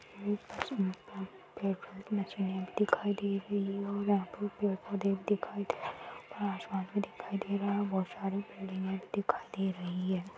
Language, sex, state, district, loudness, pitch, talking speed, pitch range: Hindi, female, Uttar Pradesh, Gorakhpur, -35 LUFS, 200 Hz, 175 wpm, 190-205 Hz